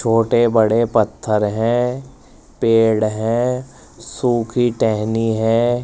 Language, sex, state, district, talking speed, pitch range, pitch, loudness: Hindi, male, Uttar Pradesh, Saharanpur, 90 wpm, 110-120 Hz, 115 Hz, -17 LUFS